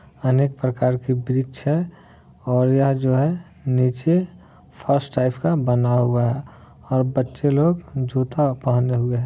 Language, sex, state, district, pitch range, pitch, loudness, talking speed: Hindi, male, Bihar, Muzaffarpur, 125-145 Hz, 130 Hz, -21 LUFS, 135 wpm